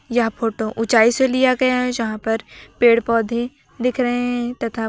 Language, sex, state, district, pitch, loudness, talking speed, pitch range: Hindi, female, Uttar Pradesh, Lucknow, 235 Hz, -19 LUFS, 185 wpm, 225-250 Hz